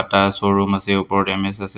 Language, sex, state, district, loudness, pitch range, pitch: Assamese, male, Assam, Hailakandi, -18 LUFS, 95-100 Hz, 100 Hz